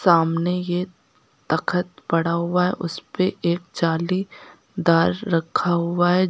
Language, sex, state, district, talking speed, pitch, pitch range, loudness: Hindi, female, Uttar Pradesh, Lucknow, 125 wpm, 175 Hz, 170-180 Hz, -22 LUFS